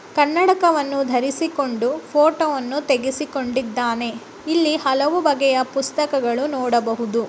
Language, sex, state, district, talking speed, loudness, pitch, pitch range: Kannada, female, Karnataka, Dakshina Kannada, 75 wpm, -20 LUFS, 275 Hz, 250-305 Hz